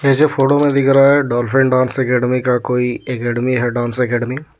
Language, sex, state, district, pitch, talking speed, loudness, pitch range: Hindi, male, Jharkhand, Deoghar, 125 Hz, 210 wpm, -15 LUFS, 125-135 Hz